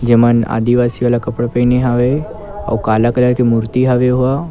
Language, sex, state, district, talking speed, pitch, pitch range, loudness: Chhattisgarhi, male, Chhattisgarh, Kabirdham, 175 wpm, 120 Hz, 120-125 Hz, -14 LUFS